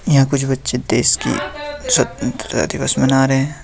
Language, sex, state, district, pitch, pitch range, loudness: Hindi, male, Jharkhand, Deoghar, 135 Hz, 135-170 Hz, -17 LUFS